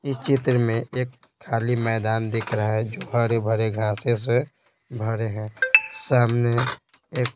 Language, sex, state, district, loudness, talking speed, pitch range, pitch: Hindi, male, Bihar, Patna, -23 LUFS, 155 wpm, 110-125 Hz, 120 Hz